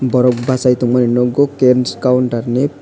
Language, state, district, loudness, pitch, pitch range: Kokborok, Tripura, West Tripura, -14 LUFS, 125 Hz, 125-130 Hz